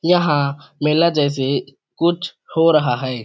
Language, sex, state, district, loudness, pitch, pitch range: Awadhi, male, Chhattisgarh, Balrampur, -18 LUFS, 150 Hz, 140-170 Hz